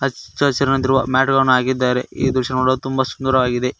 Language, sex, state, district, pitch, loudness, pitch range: Kannada, male, Karnataka, Koppal, 130 Hz, -17 LUFS, 130-135 Hz